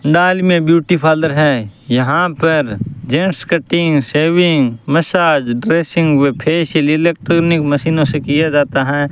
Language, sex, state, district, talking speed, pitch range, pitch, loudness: Hindi, male, Rajasthan, Bikaner, 130 wpm, 145-170 Hz, 155 Hz, -14 LUFS